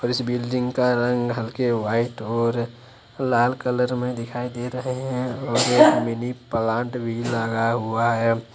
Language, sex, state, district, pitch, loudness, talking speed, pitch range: Hindi, male, Jharkhand, Ranchi, 120 Hz, -22 LUFS, 145 wpm, 115-125 Hz